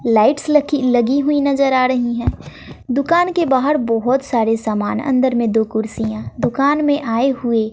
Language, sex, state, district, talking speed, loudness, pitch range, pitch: Hindi, female, Bihar, West Champaran, 170 wpm, -17 LUFS, 230-280 Hz, 255 Hz